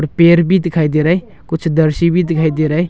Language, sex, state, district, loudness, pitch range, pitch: Hindi, male, Arunachal Pradesh, Longding, -14 LUFS, 155-170 Hz, 165 Hz